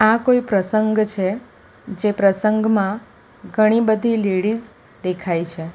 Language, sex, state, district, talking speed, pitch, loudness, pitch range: Gujarati, female, Gujarat, Valsad, 115 wpm, 215 Hz, -19 LUFS, 195-220 Hz